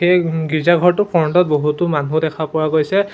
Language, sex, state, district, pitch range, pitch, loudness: Assamese, male, Assam, Sonitpur, 155-180 Hz, 165 Hz, -16 LUFS